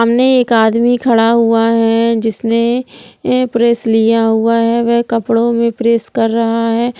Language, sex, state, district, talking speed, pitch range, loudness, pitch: Hindi, female, Bihar, Jahanabad, 165 wpm, 230-235 Hz, -12 LUFS, 230 Hz